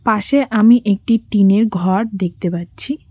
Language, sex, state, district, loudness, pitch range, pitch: Bengali, female, West Bengal, Cooch Behar, -15 LUFS, 190-230 Hz, 210 Hz